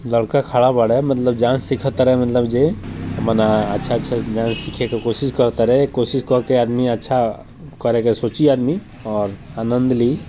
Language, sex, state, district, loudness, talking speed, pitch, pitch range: Bhojpuri, male, Bihar, Gopalganj, -18 LUFS, 165 wpm, 120 Hz, 115-130 Hz